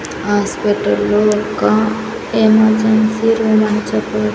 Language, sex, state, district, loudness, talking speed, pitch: Telugu, female, Andhra Pradesh, Sri Satya Sai, -14 LUFS, 85 wpm, 205 Hz